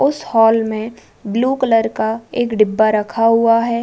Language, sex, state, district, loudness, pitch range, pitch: Hindi, female, Uttar Pradesh, Budaun, -16 LUFS, 220-235 Hz, 230 Hz